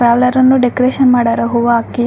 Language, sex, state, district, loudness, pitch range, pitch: Kannada, female, Karnataka, Raichur, -12 LUFS, 235-255 Hz, 245 Hz